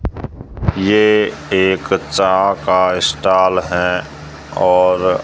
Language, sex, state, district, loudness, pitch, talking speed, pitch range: Hindi, male, Rajasthan, Jaisalmer, -14 LUFS, 95 Hz, 80 wpm, 90-95 Hz